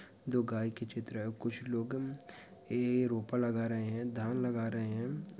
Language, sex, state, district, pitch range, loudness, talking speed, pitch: Hindi, male, Bihar, Sitamarhi, 115-125 Hz, -36 LUFS, 190 wpm, 120 Hz